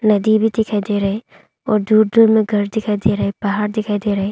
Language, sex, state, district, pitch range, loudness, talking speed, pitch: Hindi, female, Arunachal Pradesh, Longding, 205-220 Hz, -16 LUFS, 235 wpm, 210 Hz